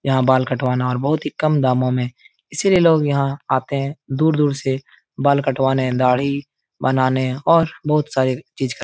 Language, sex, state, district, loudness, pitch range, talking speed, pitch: Hindi, male, Uttar Pradesh, Etah, -19 LUFS, 130-150 Hz, 190 wpm, 135 Hz